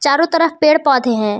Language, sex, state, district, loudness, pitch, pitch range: Hindi, female, Jharkhand, Palamu, -14 LUFS, 290 Hz, 245-325 Hz